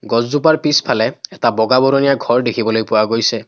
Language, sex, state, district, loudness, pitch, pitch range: Assamese, male, Assam, Kamrup Metropolitan, -15 LUFS, 120 Hz, 115-140 Hz